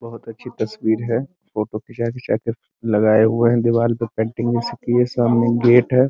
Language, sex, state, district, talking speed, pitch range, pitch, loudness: Hindi, male, Bihar, Muzaffarpur, 185 wpm, 110-120 Hz, 115 Hz, -19 LUFS